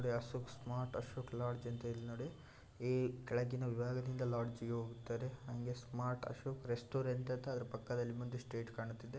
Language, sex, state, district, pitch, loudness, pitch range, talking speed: Kannada, male, Karnataka, Shimoga, 125 Hz, -43 LUFS, 120-125 Hz, 155 wpm